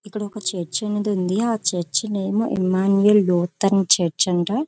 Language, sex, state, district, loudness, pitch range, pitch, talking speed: Telugu, female, Andhra Pradesh, Visakhapatnam, -20 LUFS, 180-210 Hz, 195 Hz, 155 wpm